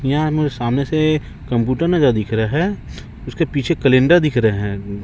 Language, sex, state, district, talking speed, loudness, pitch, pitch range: Hindi, male, Chhattisgarh, Raipur, 180 wpm, -17 LUFS, 135 Hz, 110-155 Hz